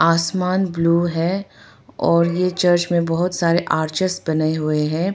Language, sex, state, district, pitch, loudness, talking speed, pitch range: Hindi, female, Arunachal Pradesh, Papum Pare, 170 Hz, -19 LUFS, 150 wpm, 165-180 Hz